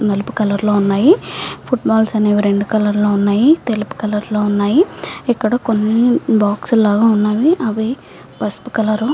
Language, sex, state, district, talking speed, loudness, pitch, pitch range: Telugu, female, Andhra Pradesh, Visakhapatnam, 145 wpm, -15 LUFS, 215 Hz, 210-235 Hz